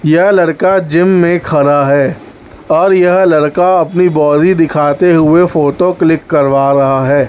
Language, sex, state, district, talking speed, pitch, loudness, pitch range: Hindi, male, Chhattisgarh, Raipur, 150 wpm, 160 Hz, -10 LUFS, 145-180 Hz